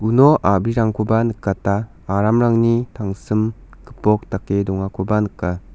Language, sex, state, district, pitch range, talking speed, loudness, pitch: Garo, male, Meghalaya, South Garo Hills, 100-115 Hz, 95 wpm, -19 LUFS, 105 Hz